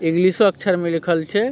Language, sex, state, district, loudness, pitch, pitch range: Maithili, male, Bihar, Supaul, -18 LUFS, 180 Hz, 165-200 Hz